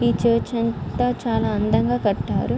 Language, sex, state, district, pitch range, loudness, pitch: Telugu, female, Andhra Pradesh, Srikakulam, 210-235 Hz, -21 LUFS, 230 Hz